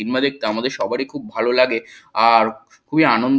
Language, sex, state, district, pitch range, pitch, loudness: Bengali, male, West Bengal, Kolkata, 115-140 Hz, 120 Hz, -19 LUFS